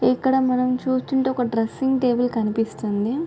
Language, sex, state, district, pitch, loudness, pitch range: Telugu, female, Andhra Pradesh, Guntur, 250 Hz, -22 LUFS, 225-265 Hz